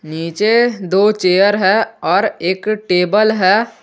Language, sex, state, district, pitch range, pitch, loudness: Hindi, male, Jharkhand, Garhwa, 185-215 Hz, 200 Hz, -14 LUFS